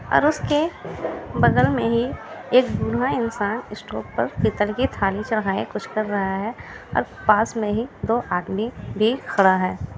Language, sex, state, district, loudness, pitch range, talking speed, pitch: Hindi, female, Bihar, Kishanganj, -22 LUFS, 200-235 Hz, 160 wpm, 215 Hz